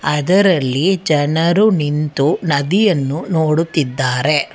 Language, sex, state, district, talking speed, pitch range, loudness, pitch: Kannada, female, Karnataka, Bangalore, 65 wpm, 145-180 Hz, -15 LUFS, 155 Hz